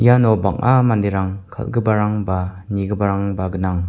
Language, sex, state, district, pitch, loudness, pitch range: Garo, male, Meghalaya, West Garo Hills, 100 Hz, -19 LUFS, 95-115 Hz